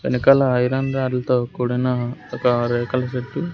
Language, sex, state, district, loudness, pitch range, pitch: Telugu, male, Andhra Pradesh, Sri Satya Sai, -20 LUFS, 125-130 Hz, 125 Hz